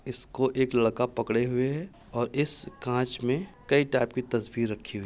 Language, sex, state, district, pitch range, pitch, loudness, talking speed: Hindi, male, Uttar Pradesh, Jyotiba Phule Nagar, 120-130 Hz, 125 Hz, -27 LUFS, 200 wpm